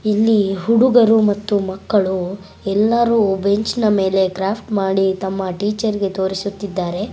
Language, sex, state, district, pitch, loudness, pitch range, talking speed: Kannada, female, Karnataka, Gulbarga, 200 Hz, -17 LUFS, 190-215 Hz, 110 wpm